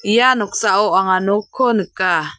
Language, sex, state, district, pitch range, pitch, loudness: Garo, female, Meghalaya, South Garo Hills, 195-245 Hz, 205 Hz, -16 LUFS